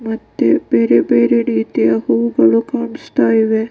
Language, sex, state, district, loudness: Kannada, female, Karnataka, Dakshina Kannada, -14 LUFS